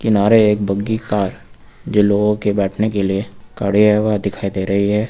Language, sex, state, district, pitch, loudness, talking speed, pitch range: Hindi, male, Uttar Pradesh, Lucknow, 105 Hz, -17 LUFS, 200 wpm, 100-105 Hz